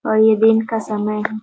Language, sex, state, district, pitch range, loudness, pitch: Hindi, female, Bihar, Muzaffarpur, 215-220 Hz, -16 LUFS, 220 Hz